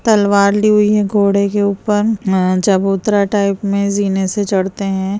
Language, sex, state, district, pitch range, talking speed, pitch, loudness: Hindi, female, Uttar Pradesh, Jalaun, 195-205 Hz, 175 wpm, 200 Hz, -14 LUFS